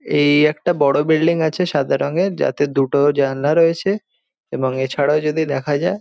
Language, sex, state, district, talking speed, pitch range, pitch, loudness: Bengali, male, West Bengal, Jhargram, 160 wpm, 140-165 Hz, 150 Hz, -17 LUFS